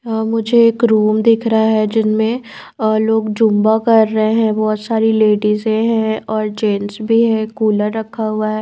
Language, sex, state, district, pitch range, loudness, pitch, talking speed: Hindi, female, Bihar, Patna, 215-225 Hz, -15 LUFS, 220 Hz, 180 wpm